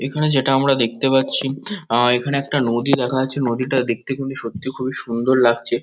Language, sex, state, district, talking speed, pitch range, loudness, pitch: Bengali, male, West Bengal, Kolkata, 185 wpm, 120-135 Hz, -19 LUFS, 130 Hz